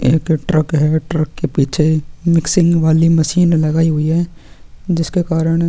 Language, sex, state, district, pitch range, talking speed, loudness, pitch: Hindi, male, Chhattisgarh, Sukma, 155-170 Hz, 160 wpm, -15 LUFS, 160 Hz